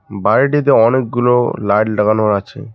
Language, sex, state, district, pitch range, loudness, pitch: Bengali, male, West Bengal, Cooch Behar, 105-130 Hz, -14 LUFS, 120 Hz